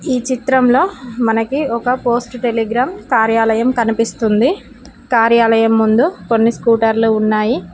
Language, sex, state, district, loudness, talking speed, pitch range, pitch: Telugu, female, Telangana, Mahabubabad, -14 LUFS, 100 wpm, 225-250 Hz, 235 Hz